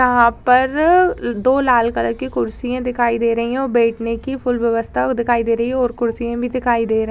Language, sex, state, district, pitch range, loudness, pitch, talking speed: Hindi, female, Bihar, Purnia, 230-250 Hz, -17 LUFS, 240 Hz, 235 wpm